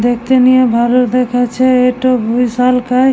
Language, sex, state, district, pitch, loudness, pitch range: Bengali, male, West Bengal, Jalpaiguri, 250 Hz, -11 LUFS, 245-255 Hz